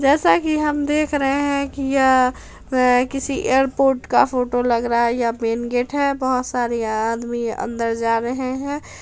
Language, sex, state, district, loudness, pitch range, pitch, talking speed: Hindi, female, Bihar, Darbhanga, -19 LUFS, 235-275 Hz, 255 Hz, 180 wpm